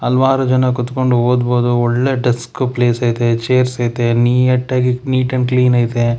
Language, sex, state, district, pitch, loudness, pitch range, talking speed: Kannada, male, Karnataka, Bangalore, 125 Hz, -15 LUFS, 120-130 Hz, 155 wpm